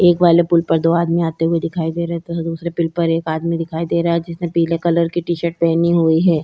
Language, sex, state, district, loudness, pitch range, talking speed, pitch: Hindi, female, Uttarakhand, Tehri Garhwal, -17 LUFS, 165-170 Hz, 280 wpm, 170 Hz